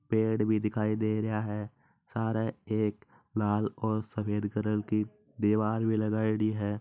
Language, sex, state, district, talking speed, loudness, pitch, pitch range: Marwari, male, Rajasthan, Nagaur, 150 wpm, -31 LUFS, 110 Hz, 105-110 Hz